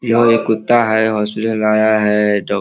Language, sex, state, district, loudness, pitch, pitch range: Hindi, male, Bihar, Kishanganj, -14 LUFS, 110 Hz, 105-115 Hz